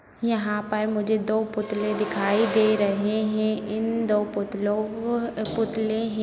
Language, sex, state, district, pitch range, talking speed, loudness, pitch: Hindi, female, Maharashtra, Chandrapur, 210-220 Hz, 135 wpm, -25 LUFS, 215 Hz